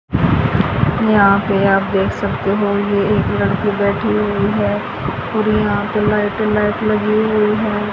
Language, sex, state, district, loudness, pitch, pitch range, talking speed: Hindi, female, Haryana, Charkhi Dadri, -16 LUFS, 210 Hz, 200-215 Hz, 160 wpm